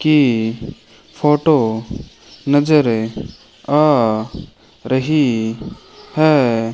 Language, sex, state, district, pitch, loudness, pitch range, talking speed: Hindi, male, Rajasthan, Bikaner, 130 Hz, -16 LUFS, 110-150 Hz, 55 wpm